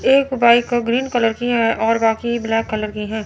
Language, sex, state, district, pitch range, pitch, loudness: Hindi, female, Chandigarh, Chandigarh, 225-240 Hz, 235 Hz, -17 LUFS